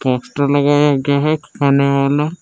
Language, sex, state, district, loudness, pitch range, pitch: Hindi, male, Jharkhand, Palamu, -15 LUFS, 140-145 Hz, 145 Hz